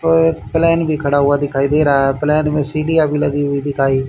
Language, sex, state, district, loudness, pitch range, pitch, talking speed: Hindi, male, Haryana, Charkhi Dadri, -15 LUFS, 140-155 Hz, 150 Hz, 235 wpm